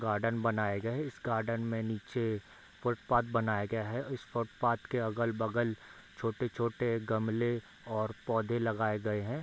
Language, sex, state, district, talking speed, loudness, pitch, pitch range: Hindi, male, Bihar, Bhagalpur, 145 wpm, -34 LUFS, 115 Hz, 110-120 Hz